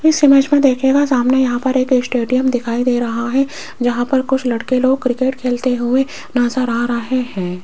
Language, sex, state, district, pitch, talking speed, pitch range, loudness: Hindi, female, Rajasthan, Jaipur, 255 Hz, 195 wpm, 245-265 Hz, -16 LUFS